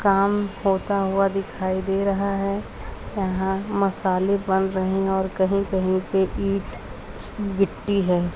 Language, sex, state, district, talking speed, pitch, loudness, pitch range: Hindi, female, Uttar Pradesh, Jalaun, 135 wpm, 195 Hz, -23 LUFS, 190-200 Hz